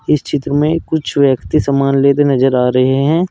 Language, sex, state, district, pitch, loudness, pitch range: Hindi, male, Uttar Pradesh, Saharanpur, 140 Hz, -13 LUFS, 135-150 Hz